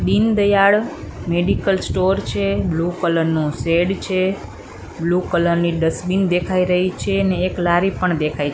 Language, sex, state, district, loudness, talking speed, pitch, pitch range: Gujarati, female, Gujarat, Gandhinagar, -18 LUFS, 145 wpm, 180 Hz, 165-190 Hz